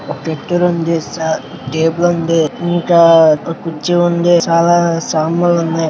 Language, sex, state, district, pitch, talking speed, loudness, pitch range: Telugu, male, Andhra Pradesh, Srikakulam, 165 Hz, 120 wpm, -13 LUFS, 160-175 Hz